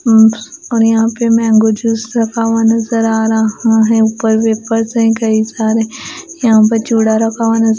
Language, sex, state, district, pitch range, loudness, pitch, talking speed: Hindi, female, Bihar, West Champaran, 220-230 Hz, -12 LUFS, 225 Hz, 185 wpm